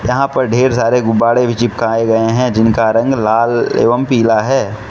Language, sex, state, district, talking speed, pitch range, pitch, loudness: Hindi, male, Manipur, Imphal West, 185 wpm, 115-125 Hz, 115 Hz, -13 LUFS